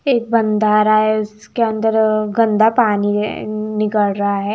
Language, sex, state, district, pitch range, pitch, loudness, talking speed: Hindi, female, Himachal Pradesh, Shimla, 210-220 Hz, 215 Hz, -16 LUFS, 130 wpm